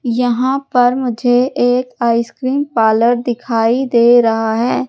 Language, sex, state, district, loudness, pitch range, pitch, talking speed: Hindi, female, Madhya Pradesh, Katni, -14 LUFS, 230-250 Hz, 245 Hz, 125 wpm